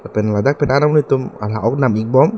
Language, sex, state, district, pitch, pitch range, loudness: Karbi, male, Assam, Karbi Anglong, 130 Hz, 110-140 Hz, -16 LUFS